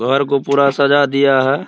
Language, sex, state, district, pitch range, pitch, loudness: Hindi, male, Bihar, Araria, 135-140 Hz, 140 Hz, -14 LUFS